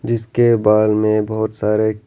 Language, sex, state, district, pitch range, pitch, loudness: Hindi, male, Arunachal Pradesh, Lower Dibang Valley, 105-110 Hz, 110 Hz, -16 LUFS